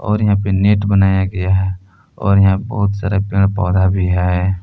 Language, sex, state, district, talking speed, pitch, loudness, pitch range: Hindi, male, Jharkhand, Palamu, 195 wpm, 95 Hz, -15 LUFS, 95-100 Hz